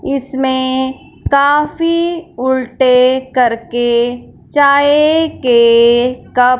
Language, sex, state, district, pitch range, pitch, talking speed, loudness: Hindi, female, Punjab, Fazilka, 245-285 Hz, 260 Hz, 75 wpm, -12 LUFS